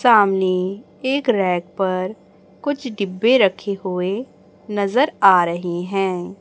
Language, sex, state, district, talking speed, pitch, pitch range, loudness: Hindi, female, Chhattisgarh, Raipur, 110 wpm, 195 Hz, 185-225 Hz, -19 LUFS